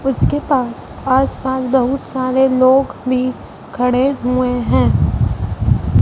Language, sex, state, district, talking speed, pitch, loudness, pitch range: Hindi, male, Madhya Pradesh, Dhar, 100 wpm, 255 Hz, -16 LUFS, 235-265 Hz